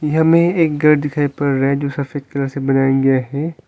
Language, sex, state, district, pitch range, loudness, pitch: Hindi, male, Arunachal Pradesh, Longding, 135-150 Hz, -16 LUFS, 145 Hz